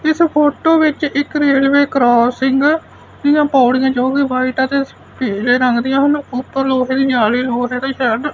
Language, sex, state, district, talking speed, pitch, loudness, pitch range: Punjabi, male, Punjab, Fazilka, 180 wpm, 270 Hz, -14 LUFS, 250-290 Hz